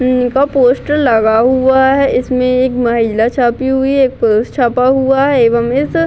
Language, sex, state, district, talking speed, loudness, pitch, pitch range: Hindi, female, Bihar, Gaya, 170 wpm, -12 LUFS, 255 Hz, 240-265 Hz